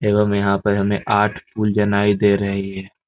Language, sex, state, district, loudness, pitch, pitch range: Hindi, male, Bihar, Jamui, -18 LUFS, 100 Hz, 100-105 Hz